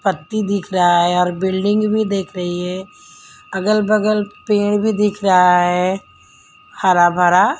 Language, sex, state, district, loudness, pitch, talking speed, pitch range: Hindi, female, Delhi, New Delhi, -16 LUFS, 200 Hz, 150 wpm, 180-215 Hz